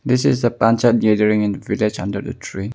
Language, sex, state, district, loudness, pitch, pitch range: English, male, Arunachal Pradesh, Longding, -18 LUFS, 110 Hz, 105-120 Hz